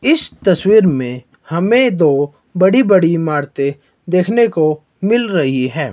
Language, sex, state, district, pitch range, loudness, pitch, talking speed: Hindi, male, Himachal Pradesh, Shimla, 145-205 Hz, -14 LUFS, 170 Hz, 130 wpm